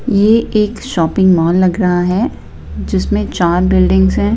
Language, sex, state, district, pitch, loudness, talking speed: Hindi, female, Himachal Pradesh, Shimla, 180 Hz, -13 LUFS, 150 wpm